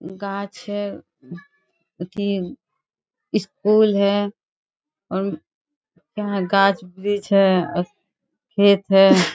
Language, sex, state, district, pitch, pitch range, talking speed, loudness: Hindi, female, Bihar, Bhagalpur, 200 Hz, 190-205 Hz, 75 wpm, -20 LUFS